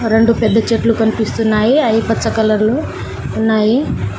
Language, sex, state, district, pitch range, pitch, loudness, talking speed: Telugu, female, Telangana, Mahabubabad, 215-230 Hz, 220 Hz, -14 LUFS, 130 wpm